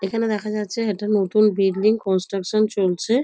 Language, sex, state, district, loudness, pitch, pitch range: Bengali, female, West Bengal, North 24 Parganas, -21 LUFS, 210 Hz, 195-215 Hz